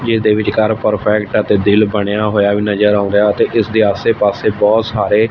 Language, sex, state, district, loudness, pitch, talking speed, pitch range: Punjabi, male, Punjab, Fazilka, -13 LUFS, 105 Hz, 205 wpm, 105-110 Hz